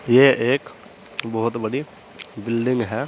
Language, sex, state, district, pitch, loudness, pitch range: Hindi, male, Uttar Pradesh, Saharanpur, 125 Hz, -21 LUFS, 115-145 Hz